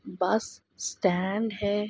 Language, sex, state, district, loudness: Hindi, female, Goa, North and South Goa, -28 LUFS